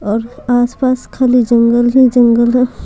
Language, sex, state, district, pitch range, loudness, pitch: Hindi, female, Bihar, Patna, 235-250 Hz, -12 LUFS, 245 Hz